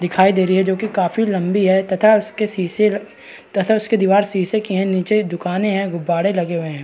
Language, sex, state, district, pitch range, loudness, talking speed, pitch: Hindi, female, Bihar, East Champaran, 185-210 Hz, -17 LUFS, 220 wpm, 195 Hz